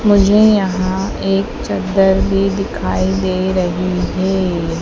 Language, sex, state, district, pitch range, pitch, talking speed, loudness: Hindi, female, Madhya Pradesh, Dhar, 185-195 Hz, 190 Hz, 110 wpm, -15 LUFS